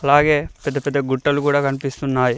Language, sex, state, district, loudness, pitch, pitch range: Telugu, male, Telangana, Mahabubabad, -19 LUFS, 140 Hz, 135-145 Hz